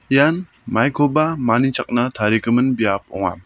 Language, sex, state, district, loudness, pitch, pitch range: Garo, male, Meghalaya, South Garo Hills, -18 LUFS, 120 Hz, 115-140 Hz